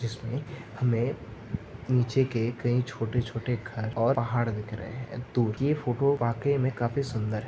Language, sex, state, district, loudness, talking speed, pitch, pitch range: Hindi, male, Maharashtra, Aurangabad, -29 LUFS, 160 wpm, 120 Hz, 115-130 Hz